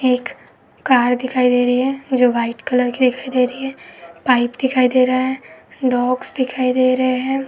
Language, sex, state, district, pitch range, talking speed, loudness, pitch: Hindi, female, Uttar Pradesh, Etah, 250-260 Hz, 195 wpm, -17 LUFS, 255 Hz